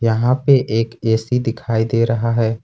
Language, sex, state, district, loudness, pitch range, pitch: Hindi, male, Jharkhand, Ranchi, -17 LUFS, 115-120 Hz, 115 Hz